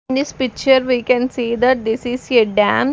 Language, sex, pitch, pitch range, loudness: English, female, 250 Hz, 240-260 Hz, -16 LUFS